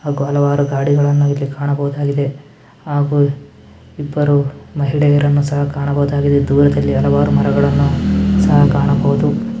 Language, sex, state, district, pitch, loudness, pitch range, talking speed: Kannada, male, Karnataka, Mysore, 140 Hz, -15 LUFS, 100-145 Hz, 95 wpm